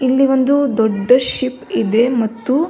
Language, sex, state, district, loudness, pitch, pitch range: Kannada, female, Karnataka, Belgaum, -15 LUFS, 255 Hz, 230-270 Hz